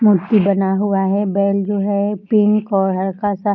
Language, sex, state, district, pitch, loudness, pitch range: Hindi, female, Bihar, Darbhanga, 200 Hz, -17 LUFS, 195-205 Hz